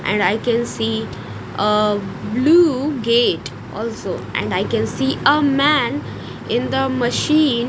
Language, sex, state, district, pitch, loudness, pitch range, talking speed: English, female, Odisha, Nuapada, 240 Hz, -18 LUFS, 205-285 Hz, 130 wpm